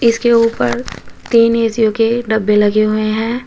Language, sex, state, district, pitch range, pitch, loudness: Hindi, female, Uttar Pradesh, Shamli, 215-230 Hz, 225 Hz, -14 LUFS